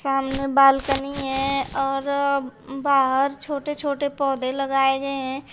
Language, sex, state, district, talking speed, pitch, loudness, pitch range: Hindi, female, Uttar Pradesh, Shamli, 120 wpm, 275 Hz, -22 LUFS, 270-280 Hz